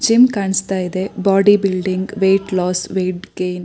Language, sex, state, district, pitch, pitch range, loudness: Kannada, female, Karnataka, Shimoga, 190 Hz, 185-195 Hz, -17 LUFS